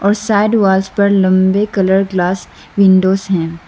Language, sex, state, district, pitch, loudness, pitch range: Hindi, female, Arunachal Pradesh, Lower Dibang Valley, 195 Hz, -13 LUFS, 185-200 Hz